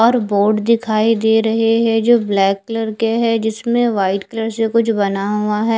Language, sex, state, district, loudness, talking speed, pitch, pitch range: Hindi, female, Odisha, Khordha, -16 LUFS, 195 wpm, 225 Hz, 210-230 Hz